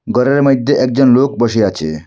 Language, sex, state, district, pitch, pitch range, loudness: Bengali, male, Assam, Hailakandi, 125 Hz, 110-135 Hz, -12 LUFS